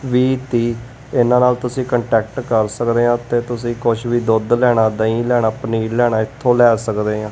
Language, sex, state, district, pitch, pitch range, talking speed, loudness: Punjabi, male, Punjab, Kapurthala, 120 Hz, 115-125 Hz, 190 wpm, -17 LUFS